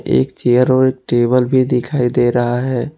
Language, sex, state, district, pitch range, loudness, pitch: Hindi, male, Jharkhand, Ranchi, 120-130 Hz, -15 LUFS, 125 Hz